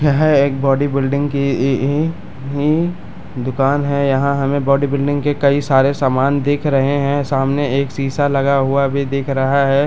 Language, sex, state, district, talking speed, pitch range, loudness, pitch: Hindi, male, Bihar, Madhepura, 170 wpm, 135-145 Hz, -16 LUFS, 140 Hz